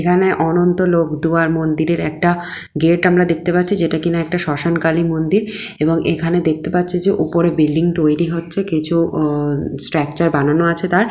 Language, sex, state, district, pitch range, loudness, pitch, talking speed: Bengali, female, West Bengal, Jalpaiguri, 160-175 Hz, -16 LUFS, 170 Hz, 160 wpm